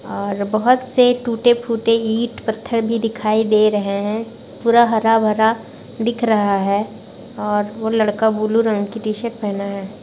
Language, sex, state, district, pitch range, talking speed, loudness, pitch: Hindi, female, Bihar, Saharsa, 210-230 Hz, 150 wpm, -18 LUFS, 220 Hz